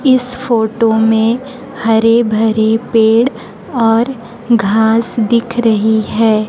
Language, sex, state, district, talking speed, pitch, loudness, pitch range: Hindi, female, Chhattisgarh, Raipur, 100 wpm, 225 Hz, -13 LUFS, 220-235 Hz